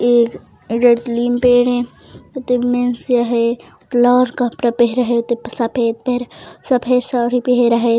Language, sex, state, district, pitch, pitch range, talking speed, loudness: Chhattisgarhi, female, Chhattisgarh, Raigarh, 245 Hz, 235-245 Hz, 150 wpm, -16 LUFS